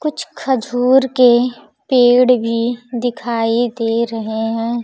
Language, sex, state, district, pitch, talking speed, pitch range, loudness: Hindi, female, Bihar, Kaimur, 245 Hz, 110 wpm, 230-255 Hz, -16 LUFS